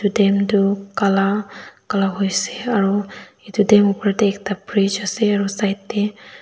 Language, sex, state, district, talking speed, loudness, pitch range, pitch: Nagamese, female, Nagaland, Dimapur, 150 wpm, -19 LUFS, 195-210 Hz, 200 Hz